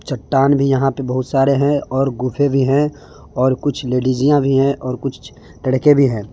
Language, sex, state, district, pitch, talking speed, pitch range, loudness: Hindi, male, Jharkhand, Palamu, 135 Hz, 190 wpm, 130-140 Hz, -16 LUFS